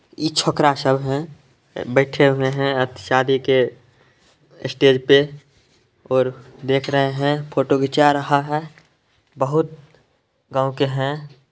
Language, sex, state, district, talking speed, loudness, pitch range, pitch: Maithili, male, Bihar, Samastipur, 120 wpm, -19 LUFS, 130-145 Hz, 135 Hz